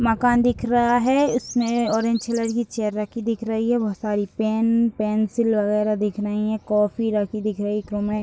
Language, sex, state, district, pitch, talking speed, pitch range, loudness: Hindi, female, Bihar, Bhagalpur, 220 Hz, 210 wpm, 210-235 Hz, -22 LUFS